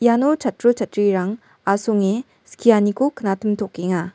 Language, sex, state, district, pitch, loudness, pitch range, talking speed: Garo, female, Meghalaya, West Garo Hills, 210 Hz, -20 LUFS, 195-235 Hz, 85 wpm